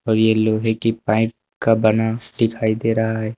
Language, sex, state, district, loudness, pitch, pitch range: Hindi, male, Uttar Pradesh, Lucknow, -19 LUFS, 110 Hz, 110-115 Hz